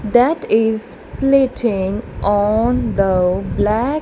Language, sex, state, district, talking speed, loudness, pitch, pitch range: English, female, Punjab, Kapurthala, 105 wpm, -17 LUFS, 220 Hz, 205-245 Hz